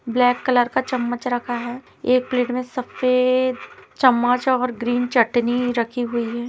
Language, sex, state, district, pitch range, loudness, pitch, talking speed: Hindi, female, Chhattisgarh, Rajnandgaon, 240-255 Hz, -20 LUFS, 245 Hz, 155 wpm